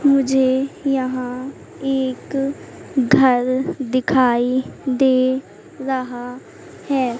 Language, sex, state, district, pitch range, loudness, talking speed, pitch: Hindi, female, Madhya Pradesh, Katni, 255-275 Hz, -19 LUFS, 65 wpm, 260 Hz